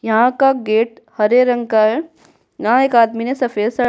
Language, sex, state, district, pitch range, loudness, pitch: Hindi, female, Bihar, Kishanganj, 220-255 Hz, -15 LUFS, 240 Hz